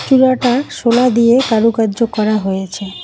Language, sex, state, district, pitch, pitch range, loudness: Bengali, female, West Bengal, Cooch Behar, 230 Hz, 215-250 Hz, -13 LUFS